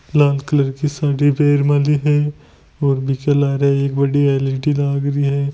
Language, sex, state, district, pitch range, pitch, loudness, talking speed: Hindi, male, Rajasthan, Nagaur, 140-145 Hz, 140 Hz, -17 LUFS, 165 wpm